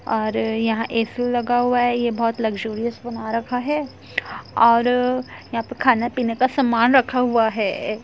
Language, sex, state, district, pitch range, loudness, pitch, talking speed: Hindi, female, Uttar Pradesh, Jyotiba Phule Nagar, 225-245 Hz, -20 LUFS, 235 Hz, 165 wpm